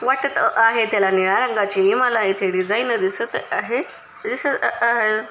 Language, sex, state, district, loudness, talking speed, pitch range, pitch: Marathi, female, Maharashtra, Chandrapur, -19 LUFS, 135 wpm, 195-250 Hz, 225 Hz